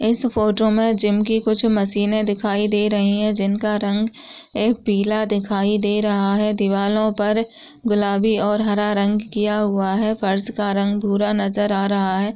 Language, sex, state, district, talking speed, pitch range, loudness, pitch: Hindi, female, Bihar, Begusarai, 175 wpm, 205-215 Hz, -19 LUFS, 210 Hz